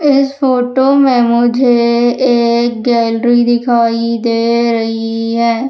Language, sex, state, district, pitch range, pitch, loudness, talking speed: Hindi, female, Madhya Pradesh, Umaria, 230-250 Hz, 235 Hz, -12 LUFS, 105 wpm